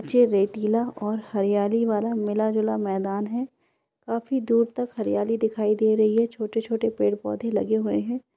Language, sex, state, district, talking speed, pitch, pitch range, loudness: Hindi, female, Bihar, Kishanganj, 150 wpm, 220 Hz, 210-230 Hz, -24 LUFS